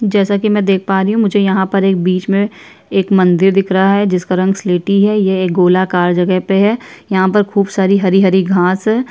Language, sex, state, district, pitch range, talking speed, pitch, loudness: Hindi, female, Chhattisgarh, Sukma, 185-200 Hz, 225 wpm, 195 Hz, -13 LUFS